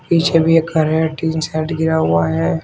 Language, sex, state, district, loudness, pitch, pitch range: Hindi, male, Uttar Pradesh, Shamli, -16 LUFS, 160 Hz, 150-160 Hz